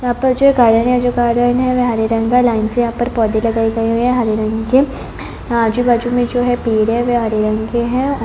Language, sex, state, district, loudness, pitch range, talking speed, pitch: Hindi, female, Bihar, Purnia, -15 LUFS, 225-245 Hz, 255 wpm, 240 Hz